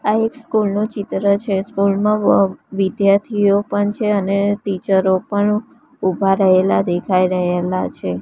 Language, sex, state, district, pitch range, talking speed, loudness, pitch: Gujarati, female, Gujarat, Gandhinagar, 190-210 Hz, 140 wpm, -17 LUFS, 200 Hz